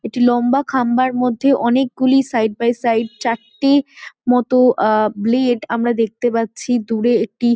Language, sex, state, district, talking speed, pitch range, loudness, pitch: Bengali, female, West Bengal, Malda, 135 wpm, 230-255 Hz, -17 LUFS, 240 Hz